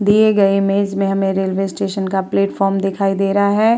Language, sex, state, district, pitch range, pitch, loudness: Hindi, female, Uttar Pradesh, Muzaffarnagar, 195-200 Hz, 195 Hz, -16 LUFS